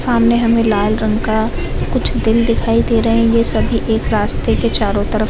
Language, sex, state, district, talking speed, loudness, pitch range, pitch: Hindi, female, Bihar, Gaya, 215 wpm, -15 LUFS, 215-230 Hz, 225 Hz